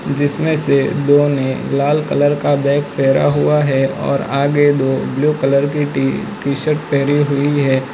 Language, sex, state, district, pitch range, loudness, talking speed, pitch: Hindi, male, Gujarat, Valsad, 135-145 Hz, -15 LUFS, 175 wpm, 140 Hz